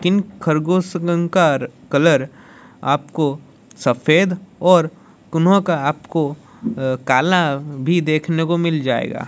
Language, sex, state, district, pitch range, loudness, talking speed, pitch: Hindi, female, Odisha, Malkangiri, 145-180 Hz, -18 LUFS, 110 wpm, 165 Hz